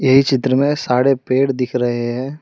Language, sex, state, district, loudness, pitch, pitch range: Hindi, male, Telangana, Hyderabad, -17 LUFS, 130 Hz, 125-135 Hz